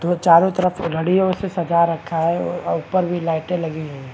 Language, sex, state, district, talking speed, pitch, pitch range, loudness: Hindi, male, Maharashtra, Chandrapur, 230 wpm, 170 Hz, 165-180 Hz, -19 LUFS